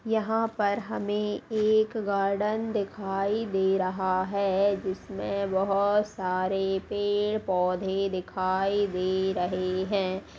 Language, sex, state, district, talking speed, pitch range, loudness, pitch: Hindi, female, Bihar, Purnia, 100 wpm, 190-205 Hz, -27 LUFS, 195 Hz